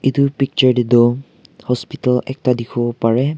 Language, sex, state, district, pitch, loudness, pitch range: Nagamese, male, Nagaland, Kohima, 125 Hz, -17 LUFS, 120-135 Hz